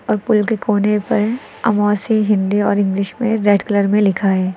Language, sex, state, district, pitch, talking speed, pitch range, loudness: Hindi, female, Uttar Pradesh, Lucknow, 205 Hz, 195 wpm, 200-215 Hz, -16 LUFS